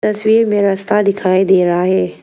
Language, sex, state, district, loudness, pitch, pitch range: Hindi, female, Arunachal Pradesh, Lower Dibang Valley, -13 LUFS, 195 Hz, 185-210 Hz